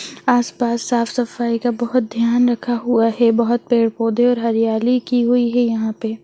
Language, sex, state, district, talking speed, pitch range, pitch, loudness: Hindi, female, Bihar, Lakhisarai, 165 wpm, 230-245 Hz, 235 Hz, -18 LUFS